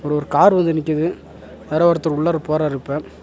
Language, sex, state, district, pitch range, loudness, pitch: Tamil, male, Tamil Nadu, Nilgiris, 150-170 Hz, -18 LUFS, 155 Hz